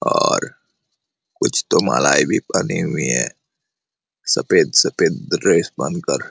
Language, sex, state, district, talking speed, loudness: Hindi, male, Jharkhand, Jamtara, 115 wpm, -17 LUFS